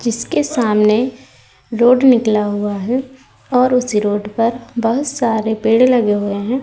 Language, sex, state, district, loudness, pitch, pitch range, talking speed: Hindi, female, Uttar Pradesh, Muzaffarnagar, -15 LUFS, 235 Hz, 210-250 Hz, 145 wpm